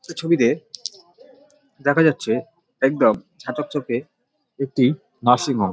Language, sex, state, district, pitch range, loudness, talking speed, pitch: Bengali, male, West Bengal, Dakshin Dinajpur, 135-220 Hz, -21 LUFS, 115 wpm, 155 Hz